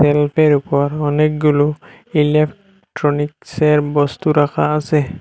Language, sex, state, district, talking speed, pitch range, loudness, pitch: Bengali, male, Assam, Hailakandi, 70 wpm, 145-155 Hz, -16 LUFS, 150 Hz